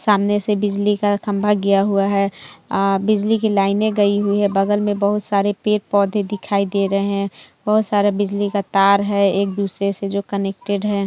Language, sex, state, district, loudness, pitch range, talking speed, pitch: Hindi, female, Bihar, Jamui, -18 LUFS, 200-205 Hz, 200 wpm, 200 Hz